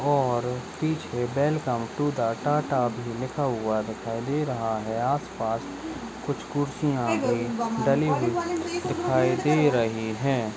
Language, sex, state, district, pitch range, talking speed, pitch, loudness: Hindi, male, Maharashtra, Solapur, 115-150 Hz, 130 wpm, 130 Hz, -26 LUFS